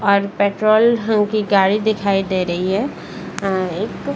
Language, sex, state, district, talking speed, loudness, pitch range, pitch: Hindi, female, Bihar, Saran, 175 wpm, -17 LUFS, 195-215 Hz, 200 Hz